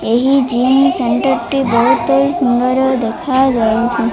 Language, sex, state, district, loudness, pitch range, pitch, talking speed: Odia, female, Odisha, Malkangiri, -13 LUFS, 235-260 Hz, 245 Hz, 130 wpm